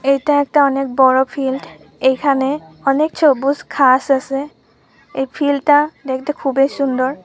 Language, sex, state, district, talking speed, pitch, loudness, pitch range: Bengali, female, West Bengal, Purulia, 140 wpm, 275 Hz, -16 LUFS, 265-290 Hz